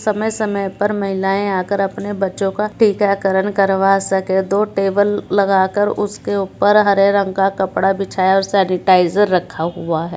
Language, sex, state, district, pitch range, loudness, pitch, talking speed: Hindi, female, Bihar, Muzaffarpur, 190-205 Hz, -16 LUFS, 195 Hz, 140 wpm